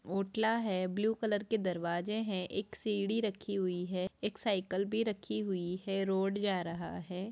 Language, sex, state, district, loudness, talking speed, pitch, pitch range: Hindi, female, Bihar, Jahanabad, -35 LUFS, 180 wpm, 195 Hz, 185-215 Hz